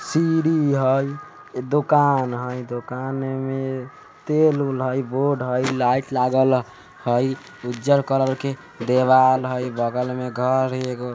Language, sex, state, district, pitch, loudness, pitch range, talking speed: Hindi, male, Bihar, Vaishali, 130 Hz, -21 LUFS, 125-135 Hz, 130 wpm